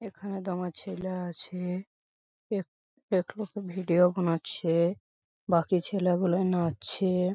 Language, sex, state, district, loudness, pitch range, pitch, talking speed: Bengali, male, West Bengal, Paschim Medinipur, -29 LUFS, 175-195 Hz, 180 Hz, 115 wpm